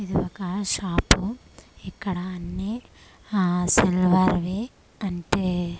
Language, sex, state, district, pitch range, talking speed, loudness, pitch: Telugu, female, Andhra Pradesh, Manyam, 180-200 Hz, 85 wpm, -24 LUFS, 185 Hz